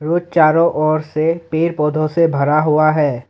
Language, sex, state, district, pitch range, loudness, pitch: Hindi, male, Assam, Sonitpur, 155-165 Hz, -15 LUFS, 155 Hz